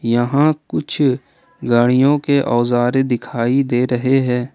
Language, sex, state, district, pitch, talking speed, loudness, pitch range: Hindi, male, Jharkhand, Ranchi, 125 Hz, 120 wpm, -16 LUFS, 120-140 Hz